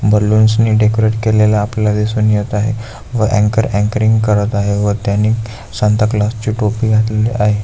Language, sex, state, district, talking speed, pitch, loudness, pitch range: Marathi, male, Maharashtra, Aurangabad, 165 wpm, 110 Hz, -14 LUFS, 105-110 Hz